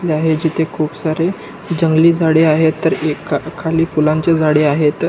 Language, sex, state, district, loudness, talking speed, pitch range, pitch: Marathi, male, Maharashtra, Nagpur, -15 LUFS, 155 wpm, 155-165 Hz, 160 Hz